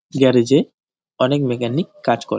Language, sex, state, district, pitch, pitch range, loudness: Bengali, male, West Bengal, Jalpaiguri, 130 Hz, 120-145 Hz, -18 LUFS